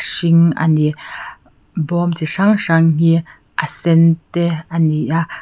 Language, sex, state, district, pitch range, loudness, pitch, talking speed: Mizo, female, Mizoram, Aizawl, 160-170 Hz, -15 LUFS, 165 Hz, 155 wpm